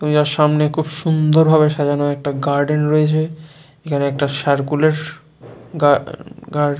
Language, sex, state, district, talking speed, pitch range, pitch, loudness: Bengali, male, West Bengal, Jalpaiguri, 130 wpm, 145-155 Hz, 150 Hz, -17 LUFS